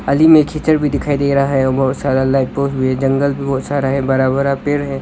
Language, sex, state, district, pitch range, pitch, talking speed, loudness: Hindi, male, Arunachal Pradesh, Lower Dibang Valley, 135-145 Hz, 140 Hz, 275 wpm, -15 LUFS